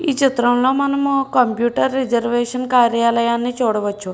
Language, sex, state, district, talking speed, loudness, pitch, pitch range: Telugu, female, Andhra Pradesh, Srikakulam, 100 wpm, -17 LUFS, 245 Hz, 235-265 Hz